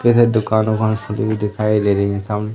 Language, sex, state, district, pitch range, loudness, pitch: Hindi, female, Madhya Pradesh, Umaria, 105-110 Hz, -17 LUFS, 105 Hz